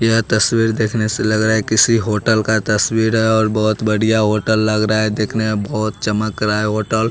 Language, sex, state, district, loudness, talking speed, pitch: Hindi, male, Bihar, West Champaran, -16 LUFS, 230 wpm, 110 Hz